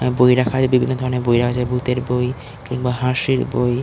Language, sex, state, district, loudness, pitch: Bengali, male, West Bengal, Dakshin Dinajpur, -18 LUFS, 125 Hz